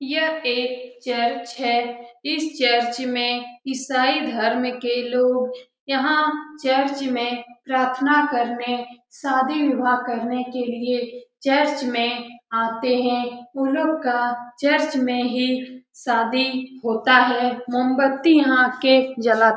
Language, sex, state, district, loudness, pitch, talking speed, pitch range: Hindi, female, Bihar, Lakhisarai, -21 LUFS, 250 Hz, 120 wpm, 245-265 Hz